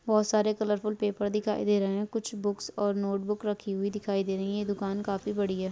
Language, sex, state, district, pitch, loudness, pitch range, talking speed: Hindi, male, Bihar, Muzaffarpur, 205 Hz, -30 LUFS, 200-210 Hz, 230 wpm